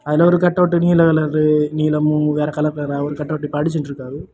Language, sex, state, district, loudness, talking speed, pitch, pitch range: Tamil, male, Tamil Nadu, Kanyakumari, -17 LUFS, 195 wpm, 150 Hz, 150-160 Hz